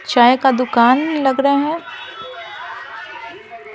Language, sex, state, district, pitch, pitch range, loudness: Hindi, female, Bihar, Patna, 270 Hz, 245-310 Hz, -15 LUFS